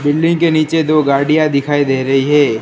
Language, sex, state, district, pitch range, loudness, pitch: Hindi, male, Gujarat, Gandhinagar, 140-155 Hz, -13 LUFS, 145 Hz